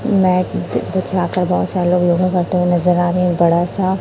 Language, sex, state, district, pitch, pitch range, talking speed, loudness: Hindi, male, Chhattisgarh, Raipur, 180 Hz, 175-185 Hz, 225 wpm, -16 LUFS